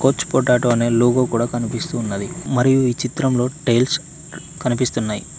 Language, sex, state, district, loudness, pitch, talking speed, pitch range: Telugu, male, Telangana, Mahabubabad, -19 LUFS, 125 Hz, 135 wpm, 120-135 Hz